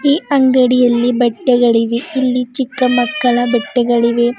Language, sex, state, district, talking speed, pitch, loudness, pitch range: Kannada, female, Karnataka, Bidar, 95 wpm, 245 Hz, -14 LUFS, 240-260 Hz